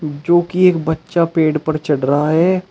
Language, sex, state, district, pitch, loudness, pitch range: Hindi, male, Uttar Pradesh, Shamli, 160 Hz, -15 LUFS, 155-175 Hz